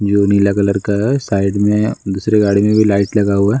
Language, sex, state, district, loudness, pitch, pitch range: Hindi, male, Bihar, Gaya, -14 LUFS, 100 Hz, 100-105 Hz